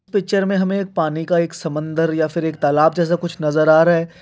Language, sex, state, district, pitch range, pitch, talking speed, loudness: Hindi, male, Rajasthan, Nagaur, 155-175 Hz, 165 Hz, 255 wpm, -18 LUFS